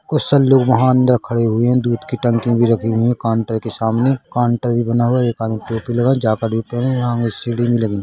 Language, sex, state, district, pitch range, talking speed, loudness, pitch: Hindi, male, Chhattisgarh, Bilaspur, 115-125 Hz, 270 wpm, -16 LUFS, 120 Hz